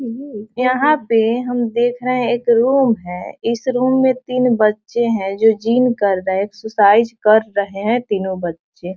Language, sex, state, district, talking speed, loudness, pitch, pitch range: Hindi, female, Bihar, Sitamarhi, 175 wpm, -16 LUFS, 230 Hz, 205-245 Hz